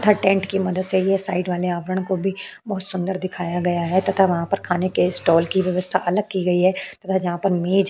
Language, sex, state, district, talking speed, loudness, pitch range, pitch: Hindi, female, Uttar Pradesh, Hamirpur, 245 wpm, -21 LUFS, 180-195 Hz, 185 Hz